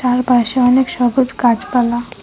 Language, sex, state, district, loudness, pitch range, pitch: Bengali, female, West Bengal, Cooch Behar, -14 LUFS, 240-255 Hz, 245 Hz